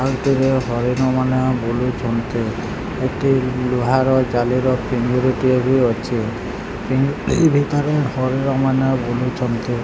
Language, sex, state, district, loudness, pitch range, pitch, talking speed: Odia, male, Odisha, Sambalpur, -19 LUFS, 120-130 Hz, 130 Hz, 90 wpm